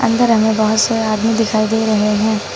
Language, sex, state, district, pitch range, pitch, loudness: Hindi, female, Uttar Pradesh, Lucknow, 215-225 Hz, 220 Hz, -15 LUFS